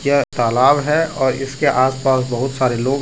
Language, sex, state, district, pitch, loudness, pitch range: Hindi, male, Jharkhand, Deoghar, 135 Hz, -17 LUFS, 130-140 Hz